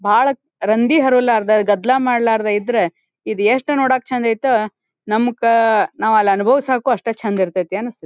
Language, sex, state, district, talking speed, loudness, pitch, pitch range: Kannada, female, Karnataka, Dharwad, 150 wpm, -16 LUFS, 230 Hz, 210-250 Hz